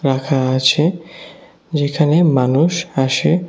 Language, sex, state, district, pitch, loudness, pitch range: Bengali, male, Tripura, West Tripura, 150 Hz, -16 LUFS, 135-170 Hz